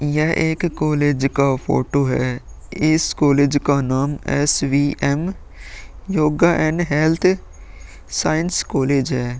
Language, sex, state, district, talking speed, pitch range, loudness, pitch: Hindi, male, Uttar Pradesh, Muzaffarnagar, 110 wpm, 135-155 Hz, -18 LUFS, 145 Hz